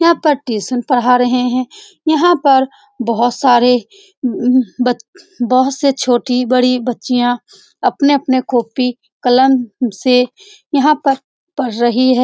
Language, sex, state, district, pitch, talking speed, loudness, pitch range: Hindi, female, Bihar, Saran, 255 Hz, 120 wpm, -14 LUFS, 245-285 Hz